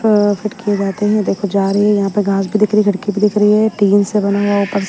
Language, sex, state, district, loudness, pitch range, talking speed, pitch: Hindi, female, Haryana, Jhajjar, -14 LUFS, 200-210 Hz, 305 wpm, 205 Hz